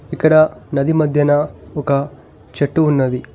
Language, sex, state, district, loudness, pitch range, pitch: Telugu, male, Telangana, Hyderabad, -16 LUFS, 140-155 Hz, 145 Hz